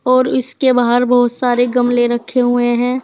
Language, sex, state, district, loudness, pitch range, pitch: Hindi, female, Uttar Pradesh, Saharanpur, -14 LUFS, 245-255 Hz, 245 Hz